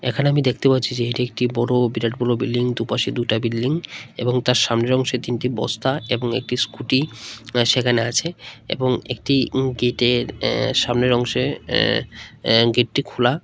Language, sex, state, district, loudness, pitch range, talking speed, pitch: Bengali, male, Tripura, West Tripura, -20 LUFS, 120-130 Hz, 150 wpm, 125 Hz